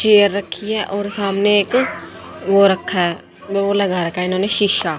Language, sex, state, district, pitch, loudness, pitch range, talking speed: Hindi, female, Haryana, Jhajjar, 200 Hz, -17 LUFS, 185-205 Hz, 180 wpm